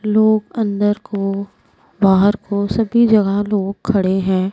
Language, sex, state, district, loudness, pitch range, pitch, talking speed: Hindi, female, Punjab, Pathankot, -16 LUFS, 195-215 Hz, 205 Hz, 130 wpm